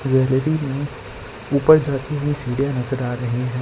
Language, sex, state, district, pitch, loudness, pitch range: Hindi, male, Gujarat, Valsad, 135 Hz, -20 LUFS, 125-145 Hz